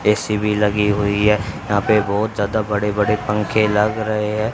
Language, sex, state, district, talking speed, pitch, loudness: Hindi, male, Haryana, Charkhi Dadri, 200 wpm, 105 Hz, -18 LUFS